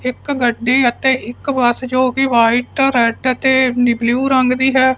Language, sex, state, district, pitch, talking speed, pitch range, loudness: Punjabi, male, Punjab, Fazilka, 255 Hz, 170 wpm, 240-265 Hz, -15 LUFS